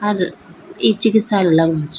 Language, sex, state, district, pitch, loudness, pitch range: Garhwali, female, Uttarakhand, Tehri Garhwal, 185 Hz, -15 LUFS, 165-210 Hz